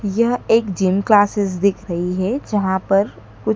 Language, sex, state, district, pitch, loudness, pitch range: Hindi, female, Madhya Pradesh, Dhar, 195 Hz, -18 LUFS, 185-210 Hz